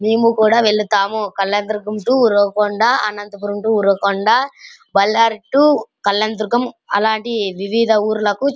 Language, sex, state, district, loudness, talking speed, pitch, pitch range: Telugu, male, Andhra Pradesh, Anantapur, -16 LUFS, 110 wpm, 215 Hz, 205-230 Hz